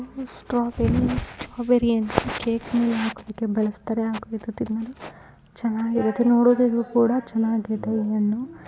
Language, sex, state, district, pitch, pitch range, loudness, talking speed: Kannada, female, Karnataka, Chamarajanagar, 230 Hz, 220-240 Hz, -23 LUFS, 90 wpm